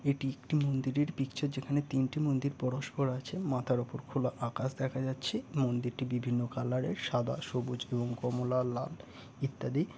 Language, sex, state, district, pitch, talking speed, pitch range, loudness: Bengali, male, West Bengal, Purulia, 130 Hz, 150 wpm, 125-135 Hz, -34 LUFS